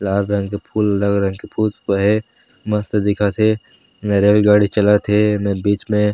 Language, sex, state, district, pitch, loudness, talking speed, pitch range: Chhattisgarhi, male, Chhattisgarh, Sarguja, 105 Hz, -17 LUFS, 185 wpm, 100-105 Hz